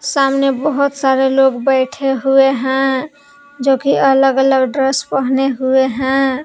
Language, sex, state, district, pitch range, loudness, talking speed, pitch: Hindi, female, Jharkhand, Palamu, 265-275 Hz, -14 LUFS, 140 wpm, 270 Hz